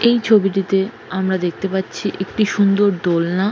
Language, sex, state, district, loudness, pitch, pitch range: Bengali, female, West Bengal, Jalpaiguri, -18 LUFS, 195 Hz, 190-205 Hz